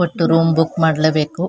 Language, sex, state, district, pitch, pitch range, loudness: Kannada, female, Karnataka, Shimoga, 165 Hz, 160-165 Hz, -16 LUFS